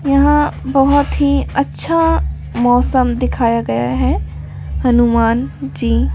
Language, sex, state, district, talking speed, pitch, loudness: Hindi, female, Delhi, New Delhi, 95 wpm, 240 Hz, -15 LUFS